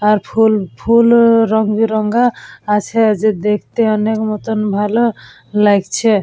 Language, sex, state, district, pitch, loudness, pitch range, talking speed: Bengali, female, West Bengal, Purulia, 220 Hz, -14 LUFS, 210-225 Hz, 115 wpm